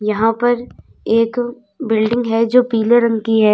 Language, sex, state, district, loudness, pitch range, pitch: Hindi, female, Uttar Pradesh, Lalitpur, -16 LUFS, 220-240 Hz, 230 Hz